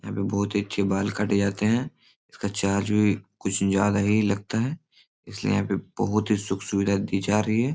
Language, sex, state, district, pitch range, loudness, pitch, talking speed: Hindi, male, Bihar, Jahanabad, 100-105 Hz, -25 LUFS, 100 Hz, 215 wpm